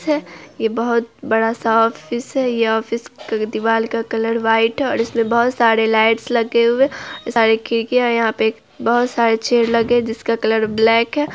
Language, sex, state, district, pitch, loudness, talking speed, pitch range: Hindi, female, Bihar, Araria, 230 Hz, -17 LUFS, 175 wpm, 225-235 Hz